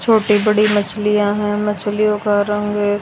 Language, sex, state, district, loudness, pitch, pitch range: Hindi, female, Haryana, Rohtak, -16 LUFS, 210 Hz, 205-210 Hz